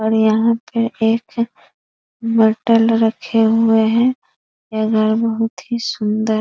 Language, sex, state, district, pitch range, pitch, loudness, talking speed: Hindi, female, Bihar, East Champaran, 220-230 Hz, 225 Hz, -16 LUFS, 130 wpm